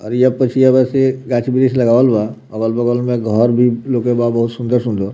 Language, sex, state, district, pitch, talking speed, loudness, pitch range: Bhojpuri, male, Bihar, Muzaffarpur, 120 Hz, 150 wpm, -15 LUFS, 115-130 Hz